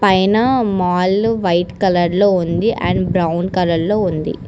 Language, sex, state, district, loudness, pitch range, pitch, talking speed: Telugu, female, Telangana, Hyderabad, -16 LUFS, 175-205 Hz, 185 Hz, 145 wpm